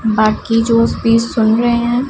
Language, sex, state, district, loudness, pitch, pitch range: Hindi, female, Punjab, Pathankot, -14 LUFS, 230 Hz, 225-235 Hz